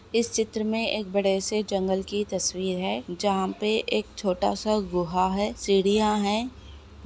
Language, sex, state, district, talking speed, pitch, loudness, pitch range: Hindi, female, Goa, North and South Goa, 160 wpm, 200 Hz, -26 LUFS, 190-215 Hz